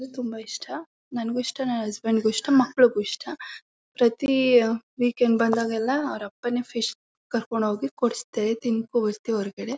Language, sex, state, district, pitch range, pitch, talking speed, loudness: Kannada, female, Karnataka, Mysore, 225-250 Hz, 235 Hz, 140 wpm, -25 LUFS